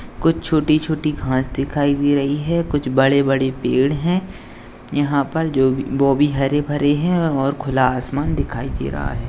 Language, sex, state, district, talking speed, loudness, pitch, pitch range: Hindi, male, Maharashtra, Dhule, 160 wpm, -18 LUFS, 140 Hz, 130-150 Hz